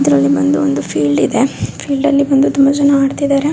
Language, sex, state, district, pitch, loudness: Kannada, female, Karnataka, Raichur, 275 Hz, -13 LUFS